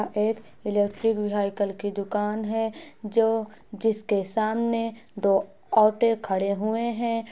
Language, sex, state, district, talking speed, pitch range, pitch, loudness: Hindi, female, Bihar, Muzaffarpur, 115 wpm, 205-225 Hz, 215 Hz, -26 LUFS